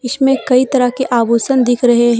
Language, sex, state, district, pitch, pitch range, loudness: Hindi, female, Jharkhand, Deoghar, 250 Hz, 240-260 Hz, -13 LUFS